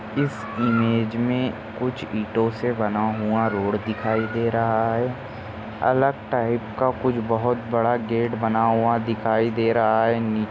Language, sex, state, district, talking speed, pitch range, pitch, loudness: Hindi, male, Maharashtra, Nagpur, 155 wpm, 110-120 Hz, 115 Hz, -23 LUFS